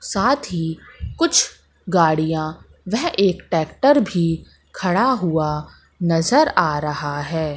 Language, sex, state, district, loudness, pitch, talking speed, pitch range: Hindi, female, Madhya Pradesh, Katni, -19 LUFS, 170 Hz, 110 wpm, 155-200 Hz